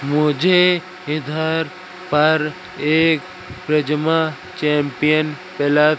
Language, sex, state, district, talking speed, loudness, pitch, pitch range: Hindi, male, Madhya Pradesh, Katni, 80 wpm, -18 LUFS, 155 Hz, 150-180 Hz